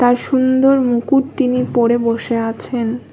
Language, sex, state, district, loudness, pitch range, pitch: Bengali, female, West Bengal, Kolkata, -16 LUFS, 235-260 Hz, 245 Hz